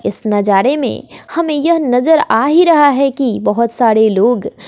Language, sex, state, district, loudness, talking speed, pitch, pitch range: Hindi, female, Bihar, West Champaran, -12 LUFS, 40 wpm, 260 Hz, 225-300 Hz